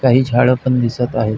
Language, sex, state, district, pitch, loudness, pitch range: Marathi, male, Maharashtra, Pune, 125 Hz, -15 LUFS, 120-130 Hz